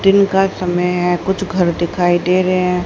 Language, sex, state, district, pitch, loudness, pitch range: Hindi, female, Haryana, Rohtak, 180 Hz, -15 LUFS, 175-190 Hz